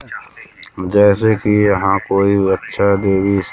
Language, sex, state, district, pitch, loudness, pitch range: Hindi, male, Madhya Pradesh, Katni, 100 Hz, -14 LUFS, 95-100 Hz